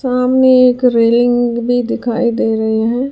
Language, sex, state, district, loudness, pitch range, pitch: Hindi, female, Karnataka, Bangalore, -13 LUFS, 235-250 Hz, 245 Hz